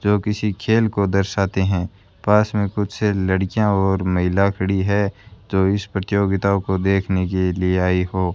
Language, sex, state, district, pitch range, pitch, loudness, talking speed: Hindi, male, Rajasthan, Bikaner, 95-100 Hz, 95 Hz, -20 LUFS, 165 wpm